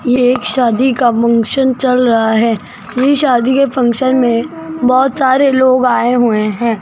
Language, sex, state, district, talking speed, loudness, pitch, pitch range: Hindi, female, Rajasthan, Jaipur, 165 wpm, -12 LUFS, 250 Hz, 235-260 Hz